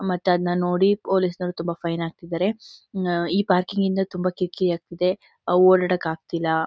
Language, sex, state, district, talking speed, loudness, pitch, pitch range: Kannada, female, Karnataka, Mysore, 190 wpm, -23 LUFS, 180 Hz, 170-185 Hz